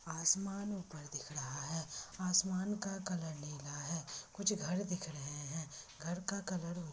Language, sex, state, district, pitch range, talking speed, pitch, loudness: Hindi, female, Bihar, Lakhisarai, 150-190 Hz, 165 wpm, 165 Hz, -39 LUFS